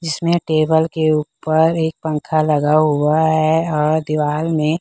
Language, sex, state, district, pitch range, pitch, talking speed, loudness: Hindi, female, Chhattisgarh, Raipur, 155-160 Hz, 155 Hz, 150 wpm, -17 LUFS